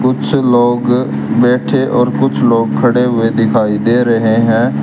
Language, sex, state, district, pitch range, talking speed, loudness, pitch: Hindi, male, Haryana, Charkhi Dadri, 110-120 Hz, 150 wpm, -12 LUFS, 115 Hz